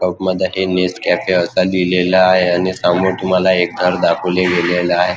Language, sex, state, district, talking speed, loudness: Marathi, male, Maharashtra, Chandrapur, 175 wpm, -15 LUFS